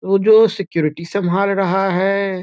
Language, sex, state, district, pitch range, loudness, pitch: Hindi, male, Bihar, Muzaffarpur, 185-200 Hz, -16 LUFS, 195 Hz